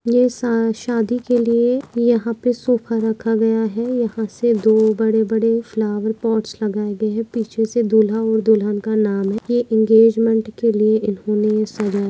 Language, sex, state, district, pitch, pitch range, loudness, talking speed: Hindi, female, Maharashtra, Pune, 225 Hz, 215-235 Hz, -18 LUFS, 170 wpm